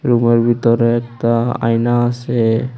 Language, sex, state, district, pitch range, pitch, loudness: Bengali, male, Tripura, West Tripura, 115-120 Hz, 120 Hz, -15 LUFS